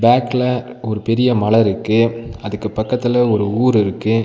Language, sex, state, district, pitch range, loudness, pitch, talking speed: Tamil, male, Tamil Nadu, Nilgiris, 110-120 Hz, -17 LUFS, 115 Hz, 140 wpm